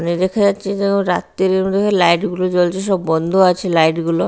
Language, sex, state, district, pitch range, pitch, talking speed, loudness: Bengali, female, Odisha, Nuapada, 170-195 Hz, 185 Hz, 195 wpm, -16 LUFS